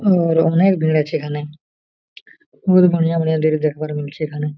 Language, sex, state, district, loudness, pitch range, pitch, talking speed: Hindi, male, Jharkhand, Jamtara, -17 LUFS, 150-165 Hz, 155 Hz, 145 wpm